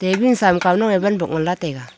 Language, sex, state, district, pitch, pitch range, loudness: Wancho, female, Arunachal Pradesh, Longding, 180 Hz, 170-200 Hz, -17 LUFS